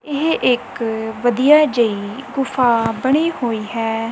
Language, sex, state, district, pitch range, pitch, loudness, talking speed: Punjabi, female, Punjab, Kapurthala, 225-270 Hz, 240 Hz, -17 LUFS, 115 wpm